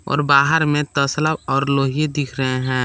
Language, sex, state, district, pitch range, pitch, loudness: Hindi, male, Jharkhand, Palamu, 135-150 Hz, 140 Hz, -18 LUFS